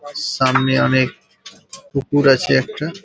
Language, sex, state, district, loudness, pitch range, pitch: Bengali, male, West Bengal, Paschim Medinipur, -17 LUFS, 135-190 Hz, 145 Hz